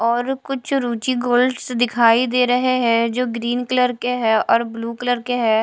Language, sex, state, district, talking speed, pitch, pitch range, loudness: Hindi, female, Delhi, New Delhi, 190 wpm, 245 Hz, 230-250 Hz, -19 LUFS